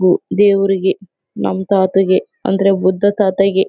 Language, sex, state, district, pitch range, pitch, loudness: Kannada, female, Karnataka, Bellary, 190-195 Hz, 195 Hz, -15 LUFS